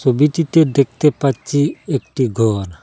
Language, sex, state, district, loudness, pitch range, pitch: Bengali, male, Assam, Hailakandi, -16 LUFS, 120-150 Hz, 140 Hz